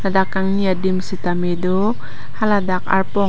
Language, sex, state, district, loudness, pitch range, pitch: Karbi, female, Assam, Karbi Anglong, -19 LUFS, 185-195 Hz, 190 Hz